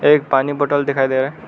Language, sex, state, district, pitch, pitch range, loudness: Hindi, male, Arunachal Pradesh, Lower Dibang Valley, 140 Hz, 135-145 Hz, -17 LUFS